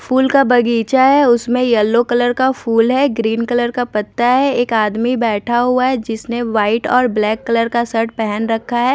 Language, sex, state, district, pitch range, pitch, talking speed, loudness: Hindi, female, Odisha, Nuapada, 225-250 Hz, 240 Hz, 200 wpm, -15 LUFS